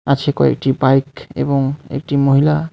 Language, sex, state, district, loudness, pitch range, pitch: Bengali, male, West Bengal, Alipurduar, -16 LUFS, 135-145 Hz, 140 Hz